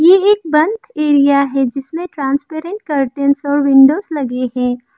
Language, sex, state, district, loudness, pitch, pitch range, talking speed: Hindi, female, Arunachal Pradesh, Lower Dibang Valley, -14 LUFS, 285 Hz, 275-320 Hz, 145 wpm